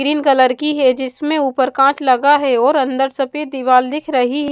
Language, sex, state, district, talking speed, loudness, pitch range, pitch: Hindi, female, Punjab, Kapurthala, 210 wpm, -15 LUFS, 260-290 Hz, 270 Hz